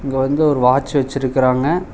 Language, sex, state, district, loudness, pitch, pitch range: Tamil, male, Tamil Nadu, Chennai, -16 LUFS, 135 Hz, 130-145 Hz